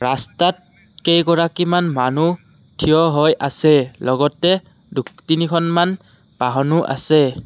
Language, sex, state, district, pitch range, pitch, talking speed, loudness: Assamese, male, Assam, Kamrup Metropolitan, 140-175 Hz, 165 Hz, 90 wpm, -17 LUFS